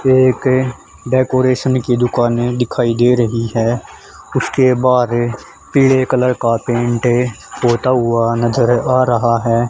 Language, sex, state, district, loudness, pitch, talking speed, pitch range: Hindi, male, Haryana, Charkhi Dadri, -15 LUFS, 120 Hz, 125 wpm, 120-130 Hz